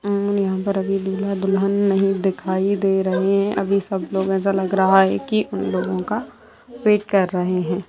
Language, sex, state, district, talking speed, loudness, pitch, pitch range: Hindi, female, Bihar, Samastipur, 190 wpm, -20 LUFS, 195 Hz, 190-200 Hz